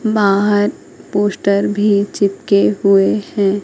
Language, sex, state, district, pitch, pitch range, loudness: Hindi, female, Madhya Pradesh, Katni, 200 Hz, 195-205 Hz, -15 LUFS